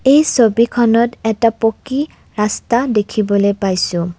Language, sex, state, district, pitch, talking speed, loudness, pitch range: Assamese, female, Assam, Kamrup Metropolitan, 225 Hz, 100 wpm, -15 LUFS, 205-240 Hz